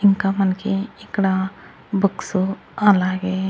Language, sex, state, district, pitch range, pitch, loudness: Telugu, male, Andhra Pradesh, Annamaya, 190-200 Hz, 195 Hz, -21 LUFS